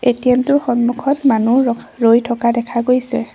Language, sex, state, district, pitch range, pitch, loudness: Assamese, female, Assam, Sonitpur, 235-255 Hz, 245 Hz, -15 LUFS